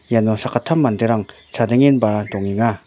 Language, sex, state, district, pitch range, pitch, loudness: Garo, male, Meghalaya, West Garo Hills, 105-120 Hz, 115 Hz, -17 LUFS